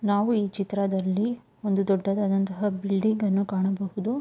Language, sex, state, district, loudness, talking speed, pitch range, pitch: Kannada, female, Karnataka, Mysore, -26 LUFS, 115 wpm, 195-210 Hz, 200 Hz